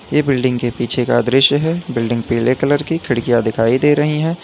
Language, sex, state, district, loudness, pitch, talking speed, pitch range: Hindi, male, Uttar Pradesh, Lalitpur, -16 LUFS, 130 Hz, 215 wpm, 120-150 Hz